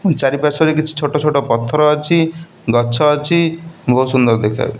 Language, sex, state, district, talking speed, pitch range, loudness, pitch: Odia, male, Odisha, Nuapada, 165 wpm, 130-165 Hz, -15 LUFS, 150 Hz